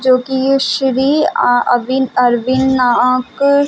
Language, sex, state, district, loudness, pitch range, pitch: Hindi, female, Chhattisgarh, Raigarh, -13 LUFS, 250-265 Hz, 260 Hz